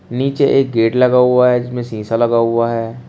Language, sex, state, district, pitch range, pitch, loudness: Hindi, male, Uttar Pradesh, Shamli, 115-125 Hz, 120 Hz, -14 LUFS